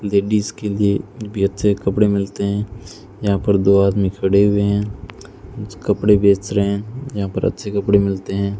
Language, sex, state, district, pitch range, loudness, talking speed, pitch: Hindi, male, Rajasthan, Bikaner, 100-105 Hz, -18 LUFS, 180 wpm, 100 Hz